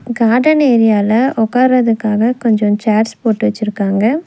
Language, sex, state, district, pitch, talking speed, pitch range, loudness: Tamil, female, Tamil Nadu, Nilgiris, 225 Hz, 100 wpm, 215-245 Hz, -13 LUFS